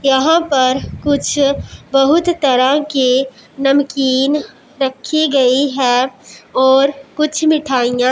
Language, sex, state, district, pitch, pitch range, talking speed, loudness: Hindi, male, Punjab, Pathankot, 275 Hz, 260-290 Hz, 95 wpm, -14 LUFS